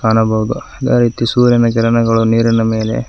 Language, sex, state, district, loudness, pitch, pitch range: Kannada, female, Karnataka, Koppal, -13 LUFS, 115 Hz, 110-115 Hz